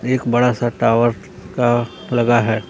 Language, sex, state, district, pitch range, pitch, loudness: Hindi, male, Bihar, Kaimur, 115-120 Hz, 120 Hz, -17 LUFS